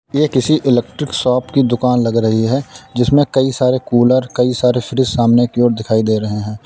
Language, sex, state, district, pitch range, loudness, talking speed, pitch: Hindi, male, Uttar Pradesh, Lalitpur, 120-130 Hz, -15 LUFS, 205 wpm, 125 Hz